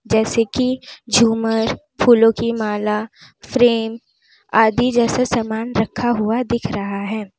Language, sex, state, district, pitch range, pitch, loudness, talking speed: Hindi, female, Uttar Pradesh, Lalitpur, 220-240 Hz, 225 Hz, -18 LUFS, 120 wpm